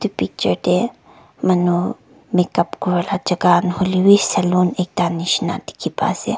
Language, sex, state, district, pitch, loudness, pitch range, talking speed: Nagamese, male, Nagaland, Kohima, 180 Hz, -18 LUFS, 175-185 Hz, 140 wpm